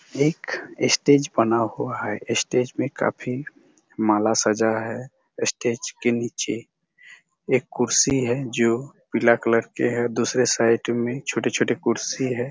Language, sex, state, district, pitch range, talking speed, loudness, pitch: Hindi, male, Chhattisgarh, Raigarh, 115-130 Hz, 135 wpm, -22 LUFS, 120 Hz